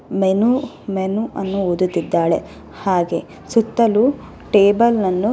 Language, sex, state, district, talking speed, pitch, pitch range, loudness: Kannada, female, Karnataka, Bellary, 100 wpm, 200 Hz, 190-230 Hz, -18 LUFS